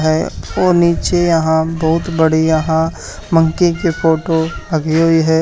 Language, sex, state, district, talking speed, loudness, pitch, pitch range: Hindi, male, Haryana, Charkhi Dadri, 135 wpm, -14 LUFS, 160 Hz, 160-170 Hz